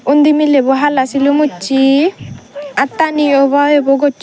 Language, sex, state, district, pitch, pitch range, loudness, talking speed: Chakma, female, Tripura, Dhalai, 280 Hz, 275-290 Hz, -12 LUFS, 140 wpm